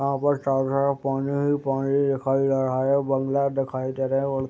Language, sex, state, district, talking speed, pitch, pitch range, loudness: Hindi, male, Bihar, Madhepura, 240 wpm, 135 Hz, 135-140 Hz, -24 LUFS